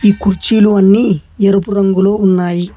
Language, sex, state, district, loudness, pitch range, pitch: Telugu, male, Telangana, Hyderabad, -11 LUFS, 190-205 Hz, 195 Hz